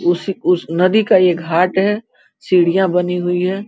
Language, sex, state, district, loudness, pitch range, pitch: Hindi, female, Uttar Pradesh, Gorakhpur, -15 LUFS, 175-190 Hz, 180 Hz